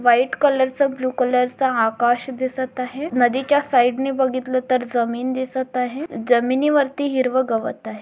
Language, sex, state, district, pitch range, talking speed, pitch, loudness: Marathi, female, Maharashtra, Dhule, 245-265 Hz, 155 wpm, 255 Hz, -20 LUFS